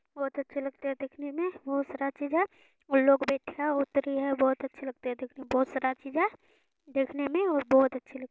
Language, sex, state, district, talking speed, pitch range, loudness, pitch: Hindi, female, Bihar, Purnia, 210 wpm, 265-290 Hz, -30 LUFS, 275 Hz